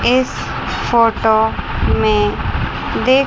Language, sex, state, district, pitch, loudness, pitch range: Hindi, female, Chandigarh, Chandigarh, 225 Hz, -16 LUFS, 220-255 Hz